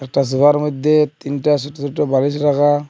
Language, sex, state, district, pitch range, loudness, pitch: Bengali, male, Assam, Hailakandi, 140-150 Hz, -16 LUFS, 145 Hz